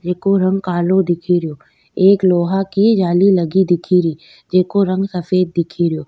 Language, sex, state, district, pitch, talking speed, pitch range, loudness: Rajasthani, female, Rajasthan, Nagaur, 180 Hz, 140 wpm, 175-190 Hz, -15 LUFS